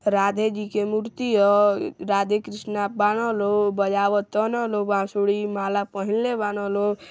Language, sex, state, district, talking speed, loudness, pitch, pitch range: Hindi, male, Uttar Pradesh, Gorakhpur, 145 wpm, -23 LUFS, 205 Hz, 200-210 Hz